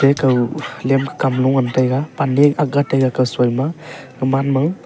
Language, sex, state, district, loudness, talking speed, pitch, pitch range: Wancho, male, Arunachal Pradesh, Longding, -17 LUFS, 195 wpm, 135 Hz, 130-145 Hz